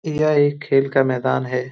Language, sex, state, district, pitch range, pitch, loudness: Hindi, male, Bihar, Lakhisarai, 130-145 Hz, 135 Hz, -19 LUFS